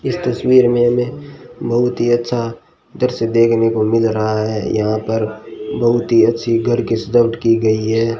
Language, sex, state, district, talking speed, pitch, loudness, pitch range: Hindi, male, Rajasthan, Bikaner, 175 wpm, 115 Hz, -16 LUFS, 110-120 Hz